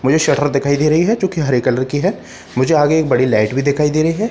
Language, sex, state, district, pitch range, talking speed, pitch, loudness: Hindi, male, Bihar, Katihar, 130-160 Hz, 305 wpm, 145 Hz, -15 LUFS